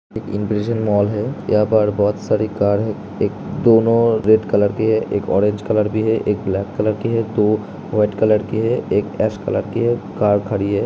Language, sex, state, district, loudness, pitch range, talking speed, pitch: Hindi, male, Uttar Pradesh, Hamirpur, -18 LUFS, 105-110 Hz, 175 wpm, 105 Hz